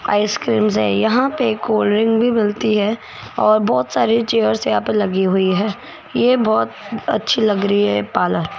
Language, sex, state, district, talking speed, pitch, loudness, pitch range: Hindi, female, Rajasthan, Jaipur, 180 wpm, 210 Hz, -17 LUFS, 185-225 Hz